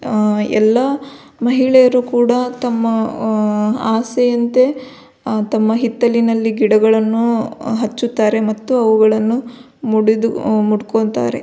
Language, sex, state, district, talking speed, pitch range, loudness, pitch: Kannada, female, Karnataka, Belgaum, 85 wpm, 220-245 Hz, -15 LUFS, 225 Hz